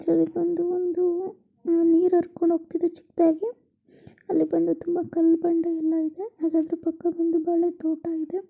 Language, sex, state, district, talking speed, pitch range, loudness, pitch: Kannada, female, Karnataka, Chamarajanagar, 155 wpm, 325-345 Hz, -24 LUFS, 335 Hz